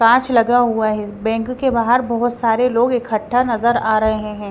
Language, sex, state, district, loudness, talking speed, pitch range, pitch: Hindi, female, Bihar, Patna, -17 LUFS, 200 wpm, 220-245 Hz, 230 Hz